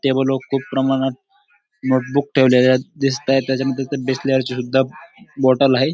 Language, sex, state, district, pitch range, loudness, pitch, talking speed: Marathi, male, Maharashtra, Dhule, 130-135 Hz, -18 LUFS, 135 Hz, 150 wpm